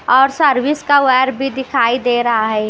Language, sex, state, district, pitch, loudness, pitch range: Hindi, female, Maharashtra, Washim, 265 Hz, -14 LUFS, 240-280 Hz